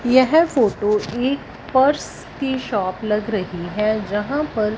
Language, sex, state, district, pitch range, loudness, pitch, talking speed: Hindi, female, Punjab, Fazilka, 210-265 Hz, -20 LUFS, 220 Hz, 140 wpm